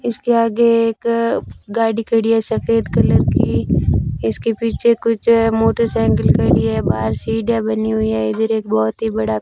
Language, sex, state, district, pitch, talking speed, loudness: Hindi, female, Rajasthan, Bikaner, 225 Hz, 165 wpm, -17 LUFS